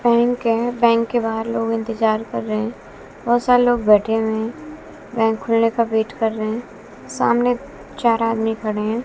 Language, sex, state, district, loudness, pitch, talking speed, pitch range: Hindi, female, Bihar, West Champaran, -19 LUFS, 225 Hz, 185 wpm, 220-235 Hz